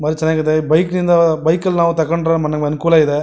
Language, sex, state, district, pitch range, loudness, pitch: Kannada, male, Karnataka, Mysore, 155-170 Hz, -15 LUFS, 160 Hz